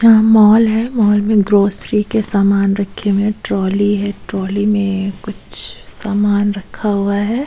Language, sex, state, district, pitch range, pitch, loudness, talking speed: Hindi, female, Goa, North and South Goa, 200-215 Hz, 205 Hz, -15 LUFS, 160 wpm